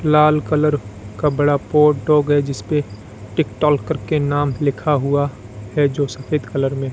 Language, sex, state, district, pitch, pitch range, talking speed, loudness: Hindi, male, Rajasthan, Bikaner, 145 Hz, 130-150 Hz, 155 wpm, -18 LUFS